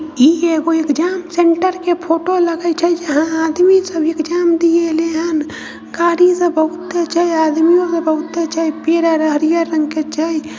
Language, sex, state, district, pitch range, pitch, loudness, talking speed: Maithili, female, Bihar, Samastipur, 315-345 Hz, 330 Hz, -15 LUFS, 160 wpm